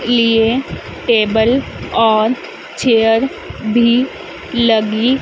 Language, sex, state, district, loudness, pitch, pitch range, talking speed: Hindi, female, Madhya Pradesh, Dhar, -14 LUFS, 230 Hz, 225-245 Hz, 70 wpm